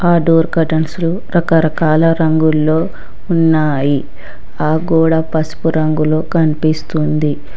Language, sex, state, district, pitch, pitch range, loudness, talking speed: Telugu, female, Telangana, Hyderabad, 160 Hz, 155-165 Hz, -14 LUFS, 85 wpm